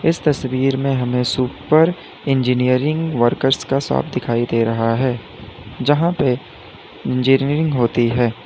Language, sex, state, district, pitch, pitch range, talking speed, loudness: Hindi, male, Uttar Pradesh, Lalitpur, 130 Hz, 120-145 Hz, 130 wpm, -18 LUFS